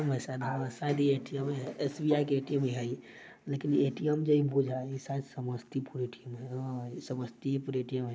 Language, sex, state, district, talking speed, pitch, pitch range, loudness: Maithili, male, Bihar, Samastipur, 160 wpm, 135 Hz, 130-140 Hz, -33 LUFS